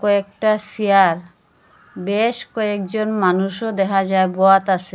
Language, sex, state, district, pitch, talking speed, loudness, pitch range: Bengali, female, Assam, Hailakandi, 195 Hz, 120 wpm, -18 LUFS, 190-215 Hz